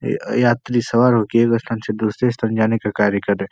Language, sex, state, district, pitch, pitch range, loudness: Hindi, male, Uttar Pradesh, Etah, 115 Hz, 105-120 Hz, -18 LUFS